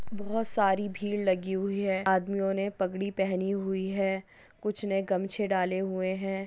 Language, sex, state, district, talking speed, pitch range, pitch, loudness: Hindi, female, Maharashtra, Dhule, 165 wpm, 190-200 Hz, 195 Hz, -30 LUFS